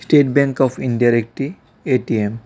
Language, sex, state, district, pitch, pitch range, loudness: Bengali, male, Tripura, West Tripura, 130 Hz, 115-140 Hz, -18 LUFS